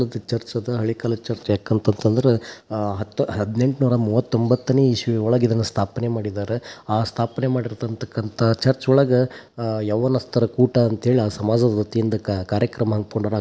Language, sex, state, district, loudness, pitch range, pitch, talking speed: Kannada, male, Karnataka, Dharwad, -21 LUFS, 110-125 Hz, 115 Hz, 140 wpm